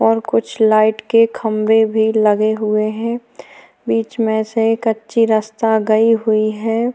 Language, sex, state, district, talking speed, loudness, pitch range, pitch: Hindi, female, Maharashtra, Chandrapur, 145 wpm, -16 LUFS, 215-225 Hz, 220 Hz